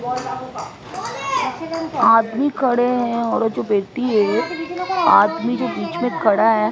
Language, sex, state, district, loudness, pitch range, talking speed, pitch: Hindi, female, Maharashtra, Mumbai Suburban, -19 LUFS, 225-325 Hz, 115 wpm, 250 Hz